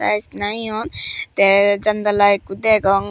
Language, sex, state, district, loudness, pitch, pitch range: Chakma, female, Tripura, Dhalai, -17 LUFS, 205 Hz, 195-215 Hz